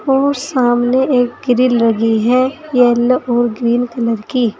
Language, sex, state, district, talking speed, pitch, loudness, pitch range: Hindi, female, Uttar Pradesh, Saharanpur, 145 wpm, 245 Hz, -14 LUFS, 240-255 Hz